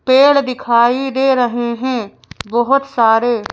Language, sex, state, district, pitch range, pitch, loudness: Hindi, female, Madhya Pradesh, Bhopal, 235-265 Hz, 245 Hz, -14 LUFS